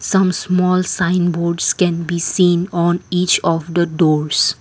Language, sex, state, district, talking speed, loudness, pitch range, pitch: English, female, Assam, Kamrup Metropolitan, 155 wpm, -16 LUFS, 170-180 Hz, 175 Hz